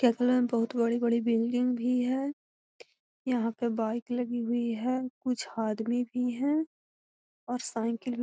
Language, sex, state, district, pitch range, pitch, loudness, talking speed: Magahi, female, Bihar, Gaya, 235-250 Hz, 245 Hz, -30 LUFS, 140 wpm